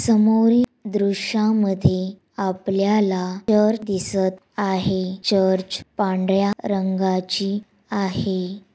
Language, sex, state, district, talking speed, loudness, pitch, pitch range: Marathi, female, Maharashtra, Dhule, 70 wpm, -21 LUFS, 195 Hz, 190-210 Hz